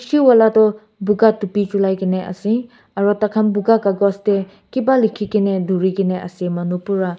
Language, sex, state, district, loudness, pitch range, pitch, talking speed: Nagamese, male, Nagaland, Kohima, -17 LUFS, 190-215 Hz, 205 Hz, 175 wpm